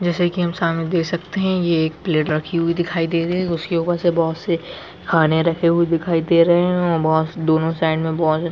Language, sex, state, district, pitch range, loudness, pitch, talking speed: Hindi, male, Chhattisgarh, Bilaspur, 160-175 Hz, -19 LUFS, 170 Hz, 240 wpm